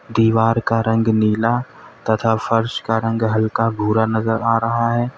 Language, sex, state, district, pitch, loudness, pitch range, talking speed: Hindi, male, Uttar Pradesh, Lalitpur, 115 Hz, -18 LUFS, 110-115 Hz, 160 wpm